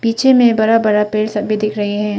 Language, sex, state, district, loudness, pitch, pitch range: Hindi, female, Arunachal Pradesh, Papum Pare, -14 LUFS, 215 Hz, 210-230 Hz